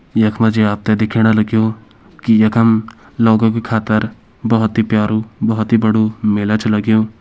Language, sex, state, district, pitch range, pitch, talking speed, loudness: Kumaoni, male, Uttarakhand, Uttarkashi, 110-115 Hz, 110 Hz, 175 wpm, -15 LUFS